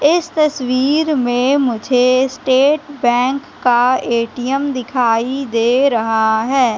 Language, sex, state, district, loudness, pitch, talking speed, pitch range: Hindi, female, Madhya Pradesh, Katni, -15 LUFS, 255 Hz, 105 wpm, 240-275 Hz